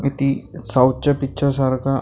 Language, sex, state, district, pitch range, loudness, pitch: Marathi, male, Maharashtra, Gondia, 130-140 Hz, -19 LUFS, 135 Hz